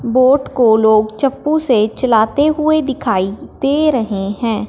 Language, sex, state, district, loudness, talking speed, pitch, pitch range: Hindi, male, Punjab, Fazilka, -14 LUFS, 140 wpm, 250 Hz, 215-285 Hz